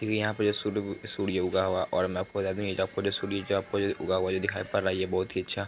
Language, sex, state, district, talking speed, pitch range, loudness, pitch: Hindi, male, Bihar, Araria, 295 wpm, 95-100 Hz, -29 LUFS, 95 Hz